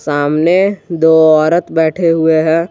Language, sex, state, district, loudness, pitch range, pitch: Hindi, male, Jharkhand, Garhwa, -11 LUFS, 155-170 Hz, 160 Hz